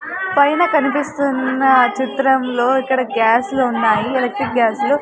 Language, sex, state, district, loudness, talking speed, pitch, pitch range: Telugu, female, Andhra Pradesh, Sri Satya Sai, -16 LUFS, 105 wpm, 265 Hz, 250-285 Hz